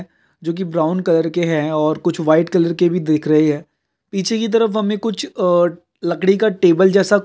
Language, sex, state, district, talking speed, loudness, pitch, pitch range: Hindi, male, Bihar, Kishanganj, 200 wpm, -17 LUFS, 175 Hz, 160-195 Hz